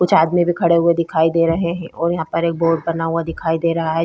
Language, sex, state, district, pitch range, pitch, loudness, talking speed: Hindi, female, Bihar, Vaishali, 165-170 Hz, 165 Hz, -18 LUFS, 295 wpm